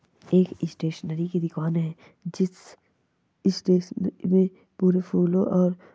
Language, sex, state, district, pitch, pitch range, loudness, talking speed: Hindi, male, Chhattisgarh, Bastar, 180 Hz, 170-190 Hz, -25 LUFS, 110 wpm